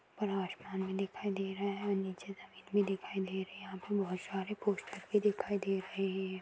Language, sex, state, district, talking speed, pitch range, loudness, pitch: Hindi, female, Maharashtra, Dhule, 225 wpm, 190-200 Hz, -37 LUFS, 195 Hz